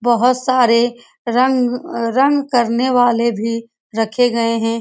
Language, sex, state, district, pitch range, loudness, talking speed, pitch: Hindi, female, Bihar, Saran, 230-250 Hz, -16 LUFS, 110 wpm, 240 Hz